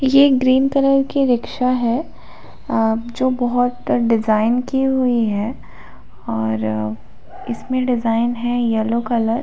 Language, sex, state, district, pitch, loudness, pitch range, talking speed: Hindi, female, Jharkhand, Jamtara, 240 Hz, -18 LUFS, 220-255 Hz, 135 wpm